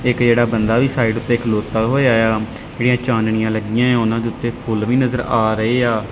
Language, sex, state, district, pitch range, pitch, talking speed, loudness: Punjabi, male, Punjab, Kapurthala, 110-125 Hz, 115 Hz, 195 wpm, -17 LUFS